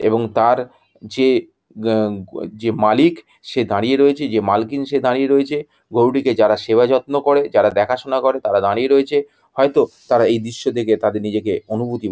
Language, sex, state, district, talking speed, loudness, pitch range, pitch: Bengali, male, West Bengal, Jhargram, 175 wpm, -17 LUFS, 110-140 Hz, 120 Hz